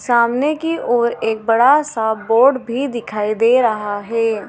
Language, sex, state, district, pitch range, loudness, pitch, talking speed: Hindi, female, Madhya Pradesh, Dhar, 220-255 Hz, -16 LUFS, 235 Hz, 160 wpm